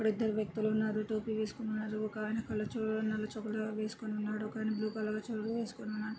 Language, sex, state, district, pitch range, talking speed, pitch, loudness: Telugu, female, Andhra Pradesh, Guntur, 215-220 Hz, 155 wpm, 215 Hz, -36 LUFS